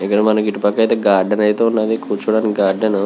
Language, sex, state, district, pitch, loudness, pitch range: Telugu, male, Andhra Pradesh, Visakhapatnam, 105 Hz, -16 LUFS, 100-110 Hz